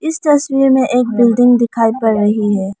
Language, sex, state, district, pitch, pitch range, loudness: Hindi, female, Arunachal Pradesh, Lower Dibang Valley, 240 Hz, 220-265 Hz, -13 LUFS